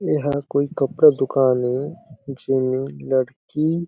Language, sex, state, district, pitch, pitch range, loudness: Chhattisgarhi, male, Chhattisgarh, Jashpur, 135 Hz, 130-150 Hz, -20 LUFS